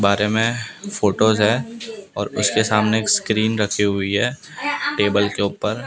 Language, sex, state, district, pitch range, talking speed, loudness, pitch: Hindi, male, Maharashtra, Mumbai Suburban, 105-120 Hz, 155 wpm, -19 LUFS, 110 Hz